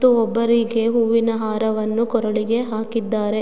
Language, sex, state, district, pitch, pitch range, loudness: Kannada, female, Karnataka, Mysore, 225 Hz, 220-230 Hz, -20 LUFS